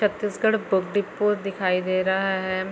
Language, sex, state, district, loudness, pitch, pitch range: Hindi, female, Chhattisgarh, Bilaspur, -24 LUFS, 195 Hz, 185-210 Hz